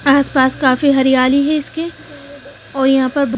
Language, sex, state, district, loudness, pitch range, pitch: Hindi, female, Haryana, Charkhi Dadri, -14 LUFS, 265-285 Hz, 275 Hz